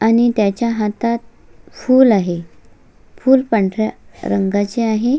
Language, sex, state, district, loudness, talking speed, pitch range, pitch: Marathi, female, Maharashtra, Solapur, -16 LUFS, 105 wpm, 205-235 Hz, 220 Hz